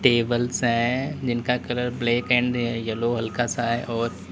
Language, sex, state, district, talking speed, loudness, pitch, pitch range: Hindi, male, Uttar Pradesh, Lalitpur, 155 wpm, -24 LUFS, 120 Hz, 115-125 Hz